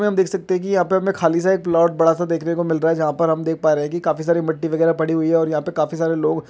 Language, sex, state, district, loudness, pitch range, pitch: Hindi, male, Bihar, Lakhisarai, -19 LUFS, 160-175 Hz, 165 Hz